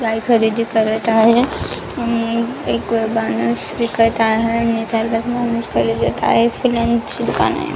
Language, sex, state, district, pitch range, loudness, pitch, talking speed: Marathi, female, Maharashtra, Nagpur, 225-235 Hz, -17 LUFS, 230 Hz, 110 wpm